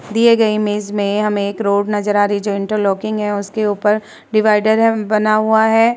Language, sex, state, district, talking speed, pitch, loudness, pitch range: Hindi, female, Uttar Pradesh, Muzaffarnagar, 220 wpm, 210 Hz, -16 LUFS, 205-215 Hz